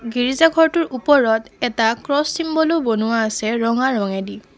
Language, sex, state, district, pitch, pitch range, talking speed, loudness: Assamese, female, Assam, Kamrup Metropolitan, 245 Hz, 225-305 Hz, 130 wpm, -18 LUFS